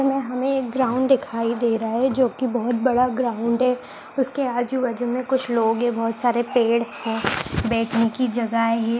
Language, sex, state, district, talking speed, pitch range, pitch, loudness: Hindi, female, Bihar, Madhepura, 185 wpm, 230-255 Hz, 240 Hz, -22 LUFS